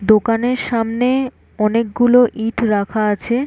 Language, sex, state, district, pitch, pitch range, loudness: Bengali, female, West Bengal, North 24 Parganas, 230 Hz, 215-245 Hz, -16 LUFS